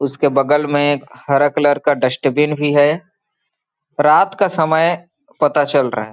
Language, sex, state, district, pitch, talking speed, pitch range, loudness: Hindi, male, Chhattisgarh, Balrampur, 145 Hz, 165 wpm, 140-150 Hz, -15 LUFS